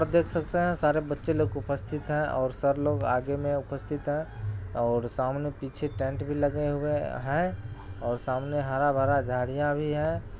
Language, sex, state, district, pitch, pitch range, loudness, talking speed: Hindi, male, Bihar, Araria, 140 Hz, 125-150 Hz, -29 LUFS, 180 wpm